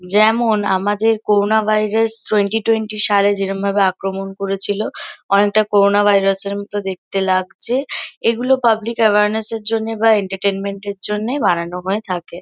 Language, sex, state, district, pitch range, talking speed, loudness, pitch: Bengali, female, West Bengal, Kolkata, 195-220 Hz, 140 wpm, -17 LUFS, 205 Hz